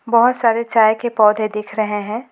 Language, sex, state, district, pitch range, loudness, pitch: Hindi, female, West Bengal, Alipurduar, 215-235 Hz, -16 LUFS, 220 Hz